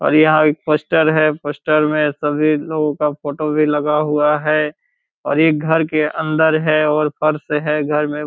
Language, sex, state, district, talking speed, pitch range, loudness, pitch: Hindi, male, Bihar, Purnia, 190 wpm, 150-155 Hz, -16 LUFS, 150 Hz